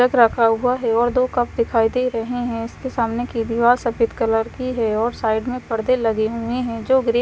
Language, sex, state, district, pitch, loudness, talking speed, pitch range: Hindi, female, Chandigarh, Chandigarh, 235 Hz, -20 LUFS, 240 wpm, 225-250 Hz